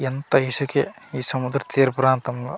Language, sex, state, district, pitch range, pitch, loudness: Telugu, male, Andhra Pradesh, Manyam, 130-140 Hz, 130 Hz, -21 LUFS